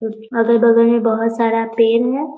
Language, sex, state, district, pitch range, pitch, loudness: Hindi, female, Bihar, Muzaffarpur, 225-235 Hz, 230 Hz, -15 LUFS